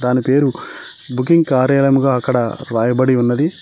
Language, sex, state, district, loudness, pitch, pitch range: Telugu, male, Telangana, Mahabubabad, -15 LUFS, 130 Hz, 125-135 Hz